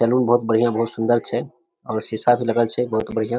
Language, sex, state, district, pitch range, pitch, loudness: Maithili, male, Bihar, Samastipur, 110-120 Hz, 115 Hz, -20 LUFS